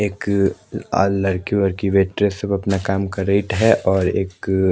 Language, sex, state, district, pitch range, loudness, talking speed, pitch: Hindi, male, Chandigarh, Chandigarh, 95-100 Hz, -19 LUFS, 180 wpm, 95 Hz